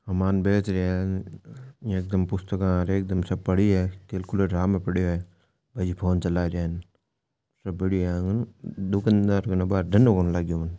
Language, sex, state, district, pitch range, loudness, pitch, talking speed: Marwari, male, Rajasthan, Nagaur, 90-100 Hz, -25 LUFS, 95 Hz, 180 wpm